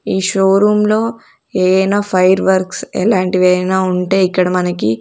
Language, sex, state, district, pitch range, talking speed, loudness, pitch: Telugu, female, Andhra Pradesh, Sri Satya Sai, 185-195 Hz, 130 wpm, -14 LUFS, 185 Hz